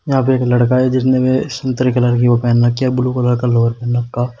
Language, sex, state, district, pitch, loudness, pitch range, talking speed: Hindi, male, Uttar Pradesh, Shamli, 125 Hz, -15 LUFS, 120-130 Hz, 275 wpm